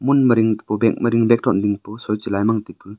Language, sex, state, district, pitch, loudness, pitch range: Wancho, male, Arunachal Pradesh, Longding, 110 Hz, -18 LUFS, 105-115 Hz